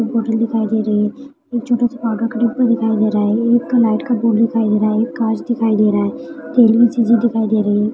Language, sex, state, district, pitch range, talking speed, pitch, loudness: Hindi, female, Maharashtra, Nagpur, 220-235 Hz, 250 wpm, 230 Hz, -16 LUFS